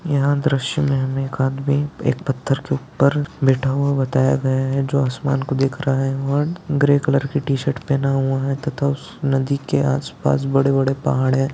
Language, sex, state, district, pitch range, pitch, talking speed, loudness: Hindi, male, Rajasthan, Churu, 135-140 Hz, 135 Hz, 205 wpm, -20 LUFS